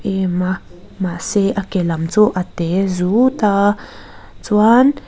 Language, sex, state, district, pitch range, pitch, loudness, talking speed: Mizo, female, Mizoram, Aizawl, 185-210 Hz, 195 Hz, -16 LUFS, 140 wpm